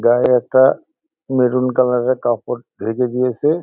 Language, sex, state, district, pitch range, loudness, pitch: Bengali, male, West Bengal, Jalpaiguri, 125-130 Hz, -17 LUFS, 125 Hz